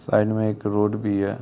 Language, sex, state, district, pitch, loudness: Hindi, male, Bihar, Lakhisarai, 105 Hz, -23 LUFS